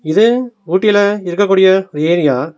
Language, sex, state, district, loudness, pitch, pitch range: Tamil, male, Tamil Nadu, Nilgiris, -13 LUFS, 190 Hz, 165-205 Hz